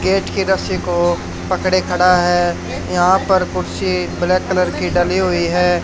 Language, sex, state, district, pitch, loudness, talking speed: Hindi, male, Haryana, Charkhi Dadri, 175 Hz, -16 LUFS, 165 wpm